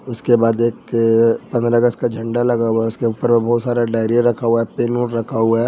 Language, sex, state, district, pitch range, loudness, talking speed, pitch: Hindi, male, Jharkhand, Ranchi, 115-120 Hz, -17 LUFS, 245 wpm, 115 Hz